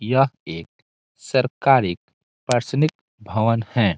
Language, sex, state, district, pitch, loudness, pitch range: Hindi, male, Bihar, Saran, 120 Hz, -21 LUFS, 105-135 Hz